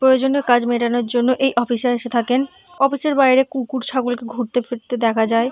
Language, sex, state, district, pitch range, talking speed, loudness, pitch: Bengali, female, West Bengal, Purulia, 240-265 Hz, 205 wpm, -18 LUFS, 245 Hz